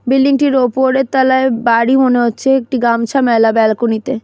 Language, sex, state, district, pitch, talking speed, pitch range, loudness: Bengali, female, West Bengal, Jalpaiguri, 255 Hz, 170 wpm, 230-265 Hz, -13 LUFS